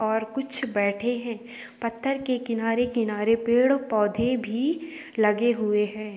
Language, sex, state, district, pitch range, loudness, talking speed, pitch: Hindi, female, Bihar, Gopalganj, 220-250 Hz, -25 LUFS, 135 wpm, 235 Hz